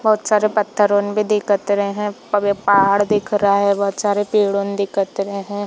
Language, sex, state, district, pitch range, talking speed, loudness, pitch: Hindi, female, Chhattisgarh, Bilaspur, 200-210 Hz, 210 wpm, -18 LUFS, 205 Hz